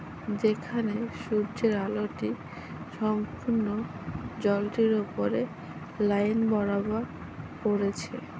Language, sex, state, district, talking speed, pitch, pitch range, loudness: Bengali, female, West Bengal, Kolkata, 65 wpm, 215 Hz, 205-220 Hz, -29 LUFS